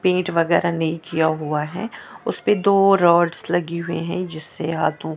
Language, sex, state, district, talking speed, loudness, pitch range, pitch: Hindi, male, Maharashtra, Mumbai Suburban, 175 wpm, -20 LUFS, 160-180 Hz, 170 Hz